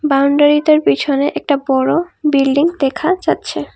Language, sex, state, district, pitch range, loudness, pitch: Bengali, female, Assam, Kamrup Metropolitan, 275-320 Hz, -14 LUFS, 290 Hz